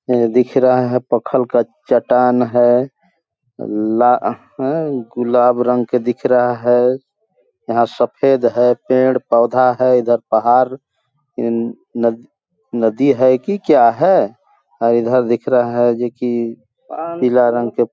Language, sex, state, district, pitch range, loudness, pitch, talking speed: Hindi, male, Chhattisgarh, Balrampur, 120-130 Hz, -15 LUFS, 125 Hz, 135 wpm